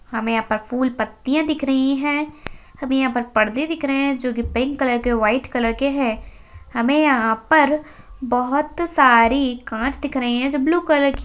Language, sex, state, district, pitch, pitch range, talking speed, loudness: Hindi, female, Maharashtra, Nagpur, 265 Hz, 240-290 Hz, 195 wpm, -19 LUFS